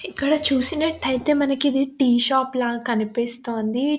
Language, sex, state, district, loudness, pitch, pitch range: Telugu, female, Telangana, Nalgonda, -21 LUFS, 265 Hz, 240-290 Hz